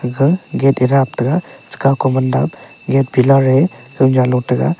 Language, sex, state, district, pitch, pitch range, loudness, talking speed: Wancho, male, Arunachal Pradesh, Longding, 135 Hz, 130-140 Hz, -15 LUFS, 175 wpm